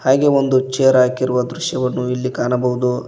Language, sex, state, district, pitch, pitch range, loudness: Kannada, male, Karnataka, Koppal, 125 Hz, 125-135 Hz, -17 LUFS